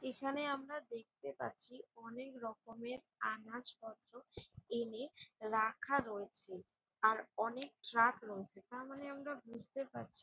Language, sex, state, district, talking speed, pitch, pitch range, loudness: Bengali, female, West Bengal, Jalpaiguri, 105 wpm, 235 Hz, 220-265 Hz, -42 LUFS